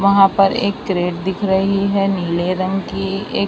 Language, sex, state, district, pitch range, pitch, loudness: Hindi, female, Maharashtra, Mumbai Suburban, 190-200 Hz, 195 Hz, -17 LUFS